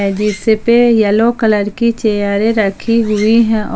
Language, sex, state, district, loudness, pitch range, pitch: Hindi, female, Jharkhand, Palamu, -13 LUFS, 210-230 Hz, 220 Hz